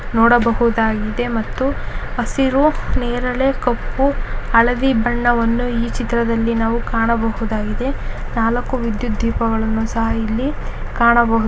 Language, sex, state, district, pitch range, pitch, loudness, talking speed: Kannada, female, Karnataka, Raichur, 225-245 Hz, 235 Hz, -18 LUFS, 95 wpm